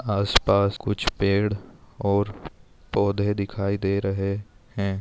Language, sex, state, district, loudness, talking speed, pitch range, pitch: Hindi, male, Maharashtra, Chandrapur, -24 LUFS, 120 wpm, 100-105 Hz, 100 Hz